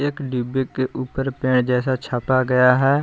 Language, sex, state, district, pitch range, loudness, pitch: Hindi, male, Jharkhand, Palamu, 125-135 Hz, -20 LUFS, 130 Hz